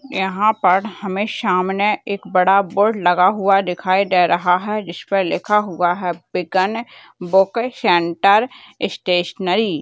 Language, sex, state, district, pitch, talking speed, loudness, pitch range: Hindi, female, Rajasthan, Nagaur, 195 Hz, 135 wpm, -17 LUFS, 180-210 Hz